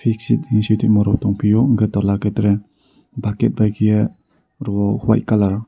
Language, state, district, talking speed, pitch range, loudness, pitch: Kokborok, Tripura, Dhalai, 160 wpm, 100-110 Hz, -17 LUFS, 105 Hz